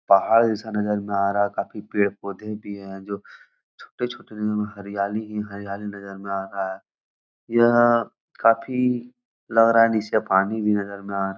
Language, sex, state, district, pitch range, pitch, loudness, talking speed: Hindi, male, Bihar, Jahanabad, 100-115 Hz, 105 Hz, -23 LUFS, 175 wpm